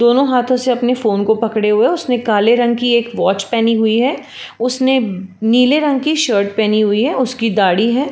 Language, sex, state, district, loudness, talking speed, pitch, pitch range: Hindi, female, Uttar Pradesh, Jalaun, -14 LUFS, 215 wpm, 235 Hz, 215-255 Hz